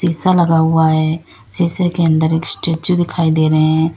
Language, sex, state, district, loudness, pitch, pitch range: Hindi, female, Uttar Pradesh, Lalitpur, -14 LUFS, 165 Hz, 160-175 Hz